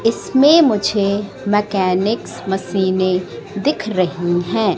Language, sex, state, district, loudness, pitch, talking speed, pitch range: Hindi, female, Madhya Pradesh, Katni, -17 LUFS, 200 Hz, 90 wpm, 185-215 Hz